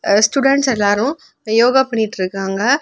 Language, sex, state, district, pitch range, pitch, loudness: Tamil, female, Tamil Nadu, Kanyakumari, 205-275 Hz, 235 Hz, -16 LUFS